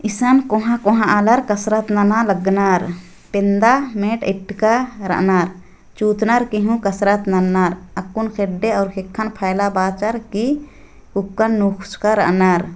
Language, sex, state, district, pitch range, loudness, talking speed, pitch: Sadri, female, Chhattisgarh, Jashpur, 190-220 Hz, -17 LUFS, 120 wpm, 205 Hz